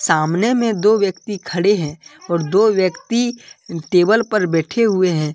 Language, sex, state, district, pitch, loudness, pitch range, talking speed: Hindi, male, Jharkhand, Deoghar, 195 Hz, -17 LUFS, 170-220 Hz, 155 wpm